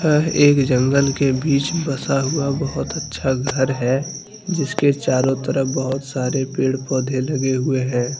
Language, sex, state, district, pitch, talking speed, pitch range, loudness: Hindi, male, Jharkhand, Deoghar, 135 Hz, 145 wpm, 130-140 Hz, -19 LUFS